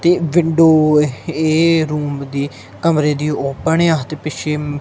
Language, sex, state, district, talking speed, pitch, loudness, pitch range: Punjabi, male, Punjab, Kapurthala, 135 wpm, 155 Hz, -16 LUFS, 145-160 Hz